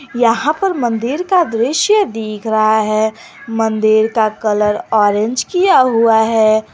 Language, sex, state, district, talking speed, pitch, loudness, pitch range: Hindi, female, Jharkhand, Garhwa, 135 wpm, 225 Hz, -14 LUFS, 215-255 Hz